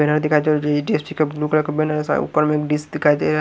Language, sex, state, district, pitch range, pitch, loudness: Hindi, male, Haryana, Rohtak, 150-155 Hz, 150 Hz, -19 LUFS